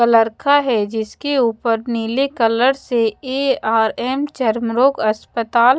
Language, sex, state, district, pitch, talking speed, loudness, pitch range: Hindi, female, Haryana, Charkhi Dadri, 235 Hz, 125 wpm, -18 LUFS, 225-265 Hz